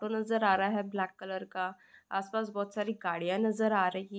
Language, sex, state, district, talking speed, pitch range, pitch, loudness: Hindi, female, Bihar, Jamui, 230 wpm, 190-215 Hz, 200 Hz, -32 LUFS